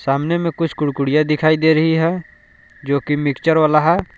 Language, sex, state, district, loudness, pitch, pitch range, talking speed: Hindi, male, Jharkhand, Palamu, -17 LUFS, 155 Hz, 145-165 Hz, 185 wpm